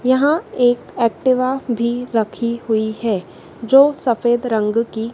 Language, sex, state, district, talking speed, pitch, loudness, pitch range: Hindi, female, Madhya Pradesh, Dhar, 130 wpm, 240 Hz, -18 LUFS, 225-255 Hz